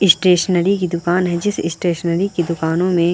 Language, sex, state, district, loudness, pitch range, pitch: Hindi, female, Uttarakhand, Uttarkashi, -17 LUFS, 170-185 Hz, 175 Hz